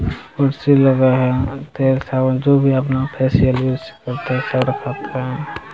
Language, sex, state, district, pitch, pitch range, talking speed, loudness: Hindi, male, Bihar, Jamui, 130 Hz, 130-135 Hz, 105 wpm, -17 LUFS